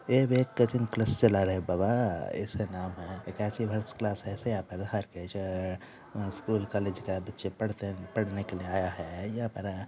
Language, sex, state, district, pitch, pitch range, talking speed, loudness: Hindi, male, Jharkhand, Sahebganj, 100 Hz, 95-110 Hz, 150 wpm, -32 LUFS